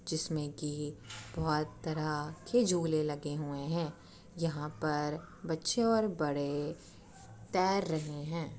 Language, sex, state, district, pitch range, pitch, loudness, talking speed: Hindi, female, Uttar Pradesh, Etah, 150-165 Hz, 155 Hz, -34 LUFS, 125 wpm